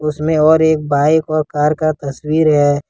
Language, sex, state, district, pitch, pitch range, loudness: Hindi, male, Jharkhand, Ranchi, 155 Hz, 145-155 Hz, -14 LUFS